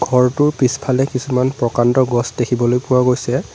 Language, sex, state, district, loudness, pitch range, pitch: Assamese, male, Assam, Sonitpur, -16 LUFS, 125-130 Hz, 125 Hz